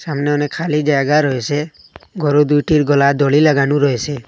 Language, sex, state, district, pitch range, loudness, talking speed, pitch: Bengali, male, Assam, Hailakandi, 140-150 Hz, -15 LUFS, 155 wpm, 145 Hz